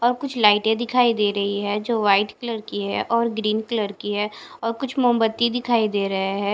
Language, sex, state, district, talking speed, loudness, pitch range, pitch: Hindi, female, Punjab, Fazilka, 210 wpm, -21 LUFS, 205-235 Hz, 220 Hz